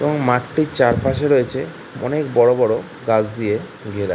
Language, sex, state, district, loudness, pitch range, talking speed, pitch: Bengali, male, West Bengal, Kolkata, -18 LUFS, 115-145 Hz, 130 wpm, 125 Hz